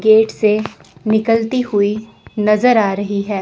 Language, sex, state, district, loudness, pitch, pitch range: Hindi, female, Chandigarh, Chandigarh, -15 LUFS, 215 Hz, 205-220 Hz